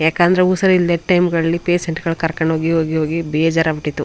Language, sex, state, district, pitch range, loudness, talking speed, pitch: Kannada, female, Karnataka, Chamarajanagar, 160-175 Hz, -16 LUFS, 180 wpm, 165 Hz